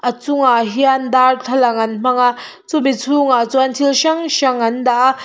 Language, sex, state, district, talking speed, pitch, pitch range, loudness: Mizo, female, Mizoram, Aizawl, 185 wpm, 255 Hz, 245-275 Hz, -14 LUFS